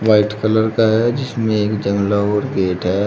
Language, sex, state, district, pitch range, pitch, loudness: Hindi, male, Uttar Pradesh, Shamli, 100-110 Hz, 105 Hz, -17 LUFS